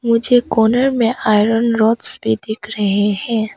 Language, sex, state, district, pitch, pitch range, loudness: Hindi, female, Arunachal Pradesh, Papum Pare, 225 Hz, 210-235 Hz, -15 LUFS